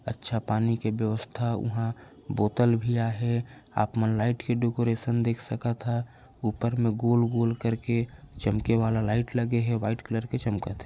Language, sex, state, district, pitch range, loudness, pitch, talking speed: Chhattisgarhi, male, Chhattisgarh, Raigarh, 110-120 Hz, -28 LUFS, 115 Hz, 170 wpm